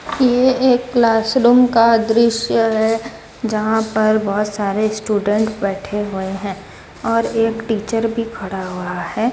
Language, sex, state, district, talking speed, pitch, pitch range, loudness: Hindi, female, Odisha, Sambalpur, 140 wpm, 220 Hz, 205-230 Hz, -17 LUFS